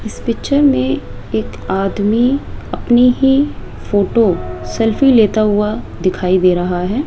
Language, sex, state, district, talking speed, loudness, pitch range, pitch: Hindi, female, Rajasthan, Jaipur, 125 wpm, -15 LUFS, 180-240 Hz, 205 Hz